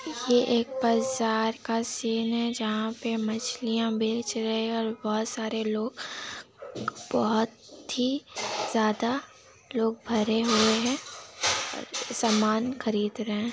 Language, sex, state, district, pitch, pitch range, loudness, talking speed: Hindi, female, Bihar, Kishanganj, 225 Hz, 220-235 Hz, -28 LUFS, 125 wpm